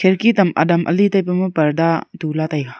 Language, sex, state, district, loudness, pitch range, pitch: Wancho, female, Arunachal Pradesh, Longding, -17 LUFS, 155-190 Hz, 170 Hz